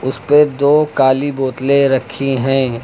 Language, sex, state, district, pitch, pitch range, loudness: Hindi, male, Uttar Pradesh, Lucknow, 135 Hz, 130-140 Hz, -14 LUFS